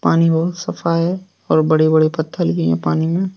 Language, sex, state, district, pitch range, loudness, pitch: Hindi, male, Jharkhand, Deoghar, 155-175 Hz, -17 LUFS, 160 Hz